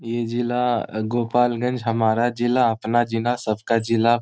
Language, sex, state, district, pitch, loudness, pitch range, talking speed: Hindi, male, Bihar, Gopalganj, 120 Hz, -21 LUFS, 115-120 Hz, 130 wpm